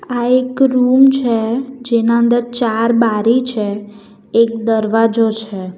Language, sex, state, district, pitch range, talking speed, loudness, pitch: Gujarati, female, Gujarat, Valsad, 220-245 Hz, 125 wpm, -14 LUFS, 230 Hz